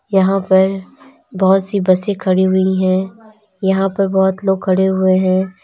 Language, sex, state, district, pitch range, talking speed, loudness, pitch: Hindi, female, Uttar Pradesh, Lalitpur, 190-195 Hz, 160 wpm, -15 LUFS, 190 Hz